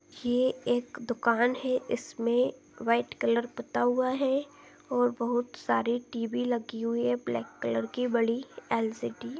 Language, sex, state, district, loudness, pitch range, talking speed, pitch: Hindi, female, Chhattisgarh, Balrampur, -30 LUFS, 235-255 Hz, 145 wpm, 245 Hz